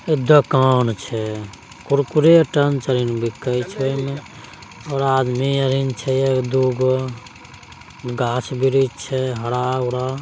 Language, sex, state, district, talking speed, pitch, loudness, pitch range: Angika, male, Bihar, Begusarai, 110 wpm, 130 Hz, -19 LUFS, 120-135 Hz